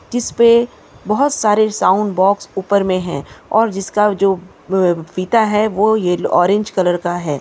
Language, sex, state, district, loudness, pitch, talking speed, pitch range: Hindi, female, Chhattisgarh, Kabirdham, -15 LUFS, 200 Hz, 155 wpm, 185-215 Hz